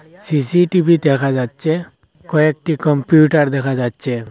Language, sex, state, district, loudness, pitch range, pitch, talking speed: Bengali, male, Assam, Hailakandi, -16 LUFS, 135-160 Hz, 150 Hz, 95 wpm